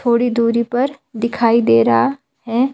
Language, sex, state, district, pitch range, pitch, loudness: Hindi, female, Himachal Pradesh, Shimla, 230-250 Hz, 235 Hz, -16 LUFS